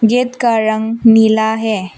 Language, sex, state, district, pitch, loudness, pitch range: Hindi, female, Arunachal Pradesh, Papum Pare, 220 Hz, -13 LUFS, 220-230 Hz